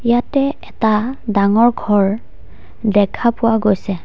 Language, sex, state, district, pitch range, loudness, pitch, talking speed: Assamese, female, Assam, Sonitpur, 205-240 Hz, -16 LUFS, 220 Hz, 105 wpm